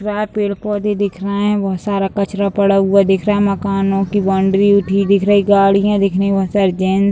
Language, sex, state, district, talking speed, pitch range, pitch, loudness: Hindi, female, Bihar, Sitamarhi, 225 wpm, 195-205 Hz, 200 Hz, -15 LUFS